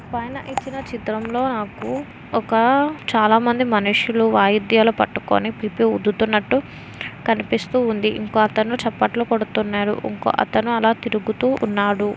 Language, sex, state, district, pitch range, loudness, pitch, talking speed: Telugu, female, Andhra Pradesh, Visakhapatnam, 215-240 Hz, -20 LUFS, 225 Hz, 110 wpm